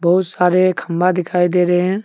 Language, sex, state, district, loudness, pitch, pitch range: Hindi, male, Jharkhand, Deoghar, -16 LUFS, 180 Hz, 180-185 Hz